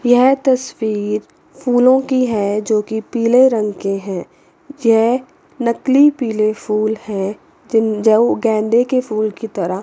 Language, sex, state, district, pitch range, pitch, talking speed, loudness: Hindi, female, Chandigarh, Chandigarh, 215-255 Hz, 225 Hz, 140 wpm, -16 LUFS